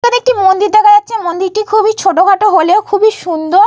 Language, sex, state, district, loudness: Bengali, female, Jharkhand, Jamtara, -10 LUFS